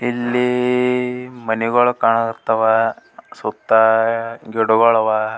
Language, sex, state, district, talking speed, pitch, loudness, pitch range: Kannada, male, Karnataka, Gulbarga, 80 wpm, 115 Hz, -17 LUFS, 110-125 Hz